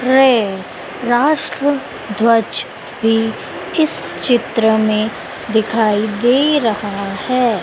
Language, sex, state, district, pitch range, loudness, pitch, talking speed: Hindi, female, Madhya Pradesh, Dhar, 215-255 Hz, -16 LUFS, 225 Hz, 80 wpm